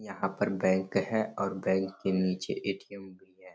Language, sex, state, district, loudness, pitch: Hindi, male, Bihar, Darbhanga, -31 LUFS, 95 Hz